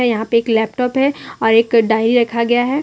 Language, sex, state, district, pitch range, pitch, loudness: Hindi, female, Jharkhand, Deoghar, 225-250 Hz, 235 Hz, -15 LUFS